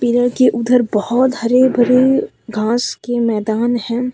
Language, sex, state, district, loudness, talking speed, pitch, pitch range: Hindi, female, Jharkhand, Deoghar, -15 LUFS, 145 wpm, 240 Hz, 230-250 Hz